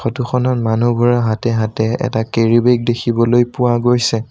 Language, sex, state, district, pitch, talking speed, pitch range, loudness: Assamese, male, Assam, Sonitpur, 120 Hz, 155 wpm, 115-125 Hz, -15 LUFS